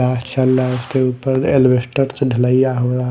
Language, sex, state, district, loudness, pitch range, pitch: Hindi, male, Odisha, Malkangiri, -16 LUFS, 125-130 Hz, 130 Hz